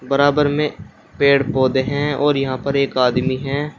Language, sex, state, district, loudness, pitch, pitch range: Hindi, male, Uttar Pradesh, Shamli, -18 LUFS, 140 Hz, 130-145 Hz